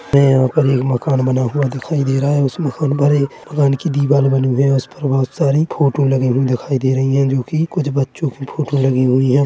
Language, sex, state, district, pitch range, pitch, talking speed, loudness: Hindi, male, Chhattisgarh, Korba, 130-145 Hz, 135 Hz, 235 wpm, -16 LUFS